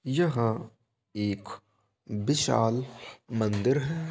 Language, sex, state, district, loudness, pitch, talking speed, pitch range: Hindi, male, Bihar, Begusarai, -29 LUFS, 115 Hz, 75 wpm, 110-135 Hz